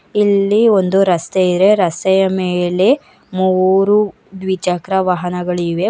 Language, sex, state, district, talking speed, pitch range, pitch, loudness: Kannada, female, Karnataka, Bangalore, 90 wpm, 180-195 Hz, 190 Hz, -14 LUFS